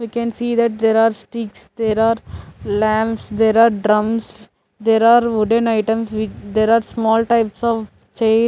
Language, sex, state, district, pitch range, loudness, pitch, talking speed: English, female, Chandigarh, Chandigarh, 215-230 Hz, -17 LUFS, 225 Hz, 175 wpm